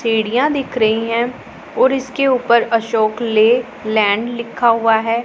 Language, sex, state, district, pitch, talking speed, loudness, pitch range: Hindi, female, Punjab, Pathankot, 235 Hz, 135 wpm, -16 LUFS, 220-245 Hz